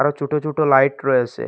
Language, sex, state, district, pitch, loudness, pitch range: Bengali, male, Assam, Hailakandi, 140 Hz, -18 LUFS, 135-150 Hz